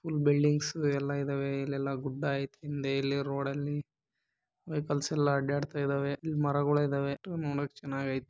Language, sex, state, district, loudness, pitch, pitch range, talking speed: Kannada, male, Karnataka, Bellary, -32 LUFS, 140 Hz, 140-145 Hz, 80 wpm